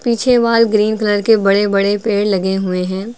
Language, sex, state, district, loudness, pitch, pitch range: Hindi, female, Uttar Pradesh, Lucknow, -14 LUFS, 205 Hz, 195-230 Hz